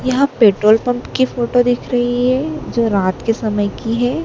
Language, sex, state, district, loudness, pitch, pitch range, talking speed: Hindi, female, Madhya Pradesh, Dhar, -16 LUFS, 245 Hz, 220-250 Hz, 195 wpm